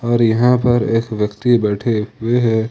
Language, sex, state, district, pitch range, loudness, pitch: Hindi, male, Jharkhand, Ranchi, 110-120 Hz, -16 LUFS, 115 Hz